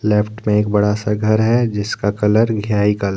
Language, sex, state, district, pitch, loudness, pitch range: Hindi, male, Jharkhand, Deoghar, 105 Hz, -17 LUFS, 105-110 Hz